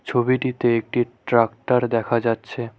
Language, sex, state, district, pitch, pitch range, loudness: Bengali, male, West Bengal, Cooch Behar, 120 Hz, 115-125 Hz, -21 LUFS